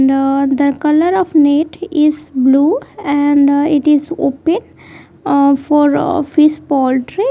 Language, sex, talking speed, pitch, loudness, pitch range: English, female, 125 wpm, 295 Hz, -13 LUFS, 280-315 Hz